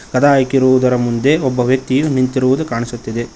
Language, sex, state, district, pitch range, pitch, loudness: Kannada, male, Karnataka, Koppal, 120-135 Hz, 130 Hz, -15 LUFS